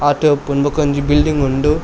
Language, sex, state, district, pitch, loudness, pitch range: Tulu, male, Karnataka, Dakshina Kannada, 145 Hz, -15 LUFS, 140-150 Hz